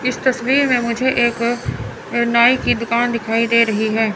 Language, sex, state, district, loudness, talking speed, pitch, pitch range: Hindi, male, Chandigarh, Chandigarh, -17 LUFS, 175 wpm, 235 Hz, 230-250 Hz